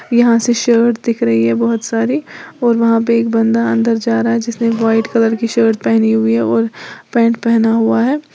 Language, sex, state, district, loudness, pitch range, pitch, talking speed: Hindi, female, Uttar Pradesh, Lalitpur, -14 LUFS, 225-235 Hz, 230 Hz, 215 wpm